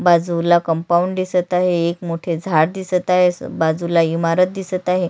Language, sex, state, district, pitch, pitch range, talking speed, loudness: Marathi, female, Maharashtra, Sindhudurg, 175 Hz, 170-180 Hz, 155 wpm, -18 LUFS